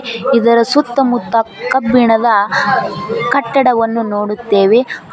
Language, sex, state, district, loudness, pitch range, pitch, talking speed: Kannada, female, Karnataka, Koppal, -13 LUFS, 225-250 Hz, 235 Hz, 60 wpm